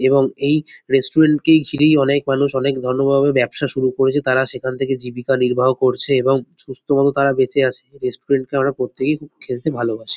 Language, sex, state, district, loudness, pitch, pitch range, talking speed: Bengali, male, West Bengal, North 24 Parganas, -17 LUFS, 135 Hz, 130-140 Hz, 175 wpm